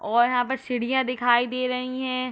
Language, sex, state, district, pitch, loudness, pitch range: Hindi, female, Uttar Pradesh, Hamirpur, 250 Hz, -24 LUFS, 245-255 Hz